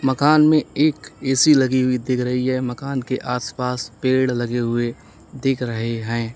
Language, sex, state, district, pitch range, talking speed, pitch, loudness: Hindi, male, Uttar Pradesh, Saharanpur, 120-135 Hz, 170 wpm, 130 Hz, -20 LUFS